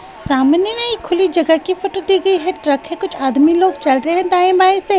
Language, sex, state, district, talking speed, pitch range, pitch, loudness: Hindi, female, Bihar, West Champaran, 255 wpm, 320-380 Hz, 365 Hz, -15 LUFS